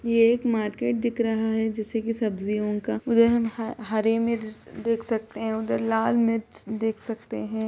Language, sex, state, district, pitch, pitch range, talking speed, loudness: Bhojpuri, female, Bihar, Saran, 225 Hz, 220-230 Hz, 180 wpm, -25 LUFS